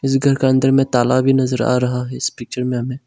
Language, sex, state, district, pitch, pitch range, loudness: Hindi, male, Arunachal Pradesh, Longding, 130 Hz, 125-135 Hz, -17 LUFS